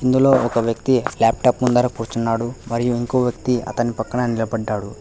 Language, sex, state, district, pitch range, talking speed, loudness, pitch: Telugu, male, Telangana, Hyderabad, 115-125 Hz, 145 wpm, -19 LUFS, 120 Hz